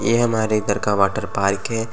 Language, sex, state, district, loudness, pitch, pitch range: Bhojpuri, male, Uttar Pradesh, Gorakhpur, -20 LUFS, 105 Hz, 100-115 Hz